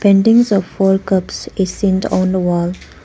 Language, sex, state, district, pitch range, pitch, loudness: English, female, Arunachal Pradesh, Papum Pare, 185-200 Hz, 190 Hz, -15 LUFS